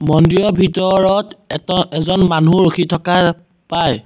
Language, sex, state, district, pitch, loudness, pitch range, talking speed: Assamese, male, Assam, Sonitpur, 175 Hz, -14 LUFS, 165-185 Hz, 120 wpm